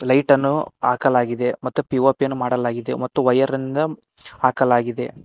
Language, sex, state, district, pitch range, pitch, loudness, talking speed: Kannada, male, Karnataka, Koppal, 125-140 Hz, 130 Hz, -20 LUFS, 125 wpm